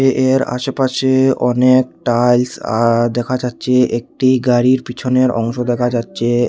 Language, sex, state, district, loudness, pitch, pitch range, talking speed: Bengali, male, Tripura, Unakoti, -15 LUFS, 125 Hz, 120-130 Hz, 130 wpm